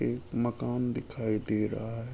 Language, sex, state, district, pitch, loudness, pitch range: Hindi, male, Uttar Pradesh, Ghazipur, 115 Hz, -32 LUFS, 110-120 Hz